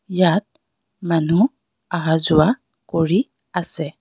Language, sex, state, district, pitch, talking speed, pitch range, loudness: Assamese, female, Assam, Kamrup Metropolitan, 175 Hz, 90 wpm, 165-205 Hz, -19 LUFS